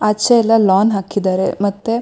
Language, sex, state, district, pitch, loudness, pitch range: Kannada, female, Karnataka, Shimoga, 205 Hz, -14 LUFS, 195-225 Hz